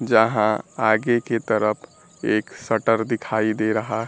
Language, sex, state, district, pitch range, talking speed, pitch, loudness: Hindi, male, Bihar, Kaimur, 110-115 Hz, 130 wpm, 110 Hz, -21 LUFS